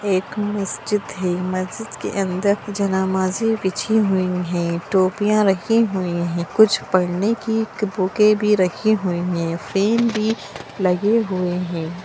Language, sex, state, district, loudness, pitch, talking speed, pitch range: Hindi, female, Bihar, Saran, -20 LUFS, 195 Hz, 135 wpm, 180-215 Hz